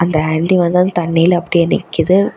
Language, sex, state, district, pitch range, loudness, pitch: Tamil, female, Tamil Nadu, Kanyakumari, 165-180 Hz, -14 LUFS, 170 Hz